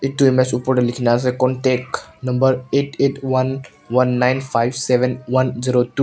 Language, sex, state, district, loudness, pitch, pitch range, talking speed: Nagamese, male, Nagaland, Kohima, -18 LUFS, 130 Hz, 125-130 Hz, 200 wpm